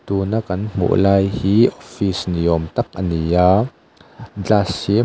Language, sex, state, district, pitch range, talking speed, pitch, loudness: Mizo, male, Mizoram, Aizawl, 90-105 Hz, 155 wpm, 100 Hz, -18 LUFS